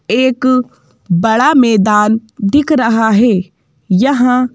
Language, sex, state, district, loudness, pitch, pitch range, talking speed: Hindi, female, Madhya Pradesh, Bhopal, -12 LUFS, 230 Hz, 210-255 Hz, 90 wpm